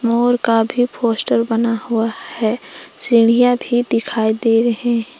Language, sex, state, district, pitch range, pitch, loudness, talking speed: Hindi, female, Jharkhand, Palamu, 225-245 Hz, 235 Hz, -16 LUFS, 140 wpm